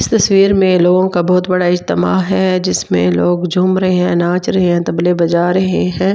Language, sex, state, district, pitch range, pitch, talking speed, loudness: Hindi, female, Delhi, New Delhi, 175-185 Hz, 180 Hz, 205 wpm, -13 LUFS